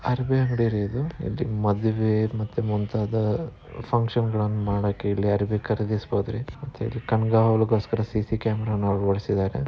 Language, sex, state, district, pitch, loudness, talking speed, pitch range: Kannada, male, Karnataka, Dharwad, 110 Hz, -25 LUFS, 130 wpm, 105-115 Hz